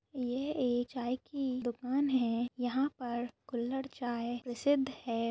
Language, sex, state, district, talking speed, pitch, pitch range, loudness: Hindi, female, Maharashtra, Sindhudurg, 135 wpm, 250 Hz, 240-270 Hz, -35 LUFS